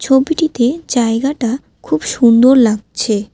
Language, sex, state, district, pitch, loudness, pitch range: Bengali, female, West Bengal, Alipurduar, 240 Hz, -13 LUFS, 230-265 Hz